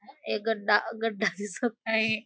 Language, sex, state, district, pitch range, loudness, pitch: Marathi, female, Maharashtra, Nagpur, 215-225 Hz, -28 LUFS, 220 Hz